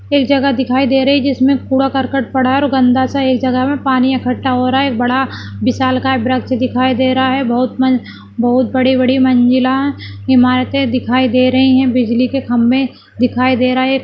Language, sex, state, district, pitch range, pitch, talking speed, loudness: Hindi, female, Maharashtra, Solapur, 255-265 Hz, 260 Hz, 195 wpm, -13 LUFS